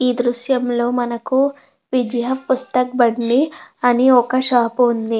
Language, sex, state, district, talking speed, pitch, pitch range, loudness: Telugu, female, Andhra Pradesh, Krishna, 125 wpm, 250 Hz, 240-260 Hz, -17 LUFS